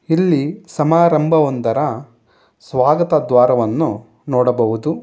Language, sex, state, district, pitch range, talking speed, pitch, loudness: Kannada, male, Karnataka, Bangalore, 120-160 Hz, 70 wpm, 140 Hz, -16 LUFS